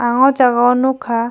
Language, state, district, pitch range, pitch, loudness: Kokborok, Tripura, Dhalai, 240-260 Hz, 250 Hz, -14 LUFS